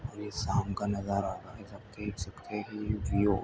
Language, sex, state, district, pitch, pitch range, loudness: Hindi, male, Uttar Pradesh, Hamirpur, 100 Hz, 100-105 Hz, -34 LUFS